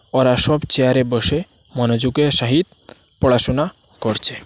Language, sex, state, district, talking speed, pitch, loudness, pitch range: Bengali, male, Assam, Hailakandi, 105 wpm, 130 Hz, -16 LUFS, 120-145 Hz